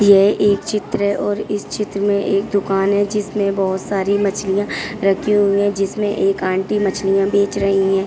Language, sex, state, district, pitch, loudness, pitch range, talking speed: Hindi, female, Uttar Pradesh, Etah, 200 Hz, -18 LUFS, 195-205 Hz, 185 wpm